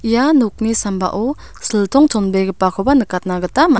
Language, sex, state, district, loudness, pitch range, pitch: Garo, female, Meghalaya, South Garo Hills, -16 LUFS, 190-265 Hz, 215 Hz